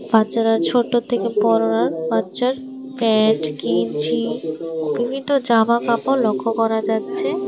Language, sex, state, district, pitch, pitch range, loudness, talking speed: Bengali, female, Tripura, West Tripura, 225 Hz, 160-240 Hz, -19 LUFS, 105 wpm